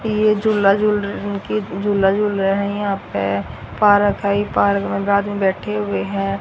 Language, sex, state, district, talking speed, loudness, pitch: Hindi, female, Haryana, Rohtak, 185 wpm, -18 LUFS, 200 Hz